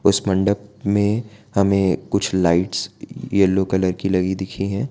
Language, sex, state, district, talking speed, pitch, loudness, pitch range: Hindi, male, Gujarat, Valsad, 145 wpm, 95 Hz, -20 LUFS, 95-100 Hz